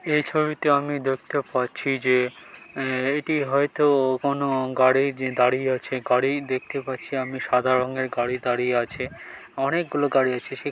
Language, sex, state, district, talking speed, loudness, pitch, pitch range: Bengali, male, West Bengal, Dakshin Dinajpur, 150 wpm, -23 LUFS, 130 Hz, 130-140 Hz